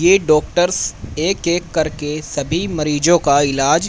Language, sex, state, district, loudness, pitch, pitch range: Hindi, male, Haryana, Rohtak, -17 LUFS, 155 Hz, 145-175 Hz